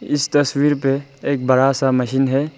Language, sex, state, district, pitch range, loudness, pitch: Hindi, male, Arunachal Pradesh, Papum Pare, 135-145 Hz, -18 LUFS, 135 Hz